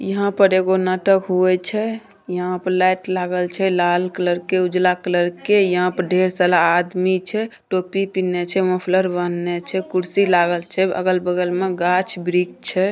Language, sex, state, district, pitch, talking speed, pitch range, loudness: Angika, female, Bihar, Begusarai, 185 Hz, 170 wpm, 180-190 Hz, -19 LUFS